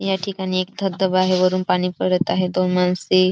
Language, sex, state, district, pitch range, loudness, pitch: Marathi, female, Maharashtra, Dhule, 180-190 Hz, -20 LUFS, 185 Hz